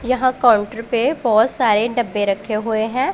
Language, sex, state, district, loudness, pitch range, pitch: Hindi, female, Punjab, Pathankot, -18 LUFS, 215-250 Hz, 230 Hz